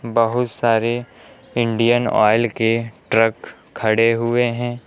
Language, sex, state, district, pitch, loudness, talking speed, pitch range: Hindi, male, Uttar Pradesh, Lucknow, 115 Hz, -18 LUFS, 110 wpm, 115-120 Hz